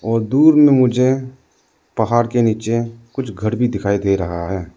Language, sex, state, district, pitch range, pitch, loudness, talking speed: Hindi, male, Arunachal Pradesh, Lower Dibang Valley, 105-130 Hz, 115 Hz, -16 LUFS, 175 wpm